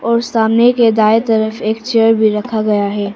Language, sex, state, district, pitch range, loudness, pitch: Hindi, female, Arunachal Pradesh, Papum Pare, 215-230 Hz, -13 LUFS, 220 Hz